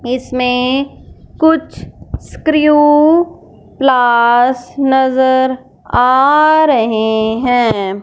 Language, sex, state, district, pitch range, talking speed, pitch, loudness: Hindi, female, Punjab, Fazilka, 245-295 Hz, 60 wpm, 260 Hz, -12 LUFS